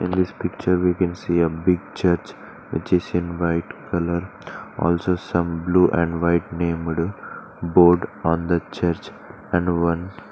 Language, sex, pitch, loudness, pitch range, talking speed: English, male, 85 Hz, -22 LUFS, 85-90 Hz, 150 wpm